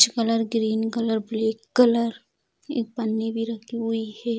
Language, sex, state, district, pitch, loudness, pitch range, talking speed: Hindi, female, Bihar, Bhagalpur, 225 Hz, -24 LUFS, 220-230 Hz, 165 wpm